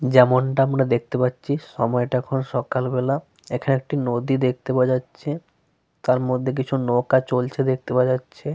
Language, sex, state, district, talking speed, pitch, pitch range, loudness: Bengali, male, Jharkhand, Sahebganj, 145 wpm, 130 Hz, 125-135 Hz, -22 LUFS